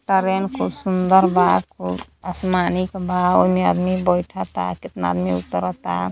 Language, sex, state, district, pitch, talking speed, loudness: Hindi, female, Uttar Pradesh, Gorakhpur, 170 Hz, 125 wpm, -20 LUFS